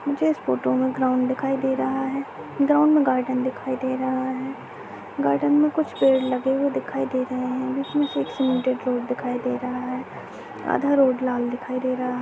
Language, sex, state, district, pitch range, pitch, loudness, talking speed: Hindi, male, Maharashtra, Nagpur, 255-270 Hz, 260 Hz, -23 LUFS, 190 wpm